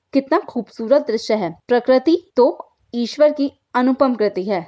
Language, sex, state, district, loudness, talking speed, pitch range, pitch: Hindi, female, Bihar, Saran, -18 LUFS, 140 wpm, 225-290 Hz, 255 Hz